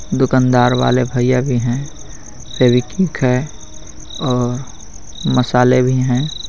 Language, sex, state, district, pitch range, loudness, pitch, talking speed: Hindi, male, Jharkhand, Garhwa, 120-130 Hz, -15 LUFS, 125 Hz, 100 wpm